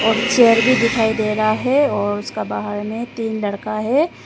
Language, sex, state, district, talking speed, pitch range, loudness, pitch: Hindi, female, Arunachal Pradesh, Lower Dibang Valley, 195 wpm, 215-240 Hz, -18 LUFS, 220 Hz